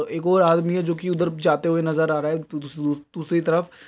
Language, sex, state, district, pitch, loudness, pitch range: Hindi, male, Uttar Pradesh, Deoria, 165 Hz, -22 LUFS, 155-175 Hz